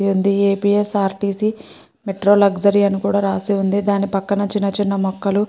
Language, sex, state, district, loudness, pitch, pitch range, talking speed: Telugu, female, Andhra Pradesh, Srikakulam, -17 LUFS, 200 Hz, 195-205 Hz, 155 wpm